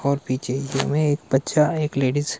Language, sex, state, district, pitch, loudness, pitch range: Hindi, male, Himachal Pradesh, Shimla, 140 Hz, -22 LUFS, 135-150 Hz